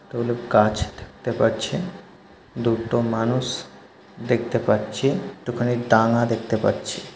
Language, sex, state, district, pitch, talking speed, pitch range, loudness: Bengali, male, West Bengal, North 24 Parganas, 115 Hz, 110 wpm, 110-120 Hz, -23 LUFS